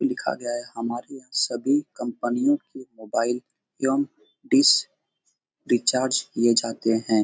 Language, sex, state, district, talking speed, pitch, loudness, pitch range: Hindi, male, Uttar Pradesh, Etah, 125 wpm, 120 Hz, -24 LUFS, 115-140 Hz